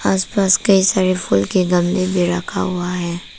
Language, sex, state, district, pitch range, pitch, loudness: Hindi, female, Arunachal Pradesh, Papum Pare, 175-190 Hz, 180 Hz, -17 LUFS